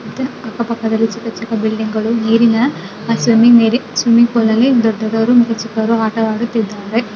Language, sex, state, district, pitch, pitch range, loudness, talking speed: Kannada, female, Karnataka, Dakshina Kannada, 225 Hz, 220-235 Hz, -14 LUFS, 100 wpm